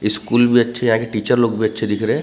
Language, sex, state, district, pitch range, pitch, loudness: Hindi, male, Maharashtra, Gondia, 110-120 Hz, 115 Hz, -17 LUFS